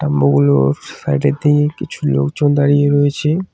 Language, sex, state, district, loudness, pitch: Bengali, male, West Bengal, Cooch Behar, -15 LUFS, 145 Hz